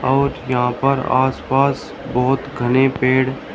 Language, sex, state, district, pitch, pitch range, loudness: Hindi, male, Uttar Pradesh, Shamli, 130 Hz, 130-135 Hz, -18 LUFS